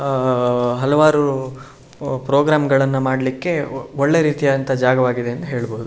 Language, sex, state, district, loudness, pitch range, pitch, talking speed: Kannada, male, Karnataka, Shimoga, -18 LUFS, 130-145 Hz, 135 Hz, 90 wpm